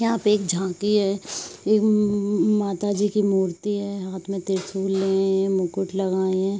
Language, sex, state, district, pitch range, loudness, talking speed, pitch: Hindi, female, Bihar, Saharsa, 190-205 Hz, -23 LUFS, 175 wpm, 195 Hz